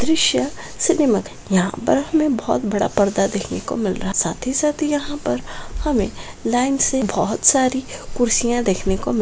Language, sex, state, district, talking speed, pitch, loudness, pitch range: Hindi, female, Maharashtra, Pune, 175 wpm, 245 Hz, -19 LUFS, 205-285 Hz